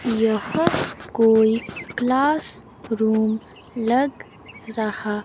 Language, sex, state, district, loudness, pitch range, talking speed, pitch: Hindi, female, Himachal Pradesh, Shimla, -21 LUFS, 220-240 Hz, 70 wpm, 225 Hz